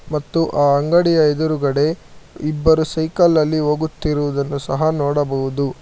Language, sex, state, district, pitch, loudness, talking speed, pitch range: Kannada, male, Karnataka, Bangalore, 150 Hz, -18 LUFS, 105 wpm, 145-160 Hz